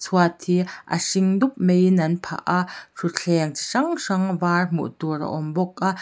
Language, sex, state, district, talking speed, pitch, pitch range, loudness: Mizo, female, Mizoram, Aizawl, 200 wpm, 180 Hz, 170-190 Hz, -22 LUFS